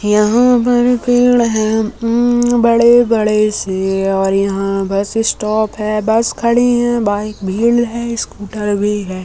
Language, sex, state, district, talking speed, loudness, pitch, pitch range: Hindi, female, Uttarakhand, Tehri Garhwal, 160 wpm, -14 LUFS, 220 Hz, 205-235 Hz